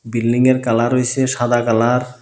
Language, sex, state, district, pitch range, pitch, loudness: Bengali, male, Tripura, South Tripura, 115-125 Hz, 120 Hz, -16 LUFS